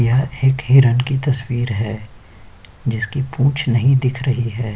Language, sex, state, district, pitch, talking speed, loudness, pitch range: Hindi, male, Uttar Pradesh, Jyotiba Phule Nagar, 125 Hz, 150 wpm, -17 LUFS, 110-135 Hz